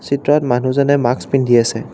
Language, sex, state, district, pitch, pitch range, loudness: Assamese, male, Assam, Kamrup Metropolitan, 130 Hz, 120-140 Hz, -15 LUFS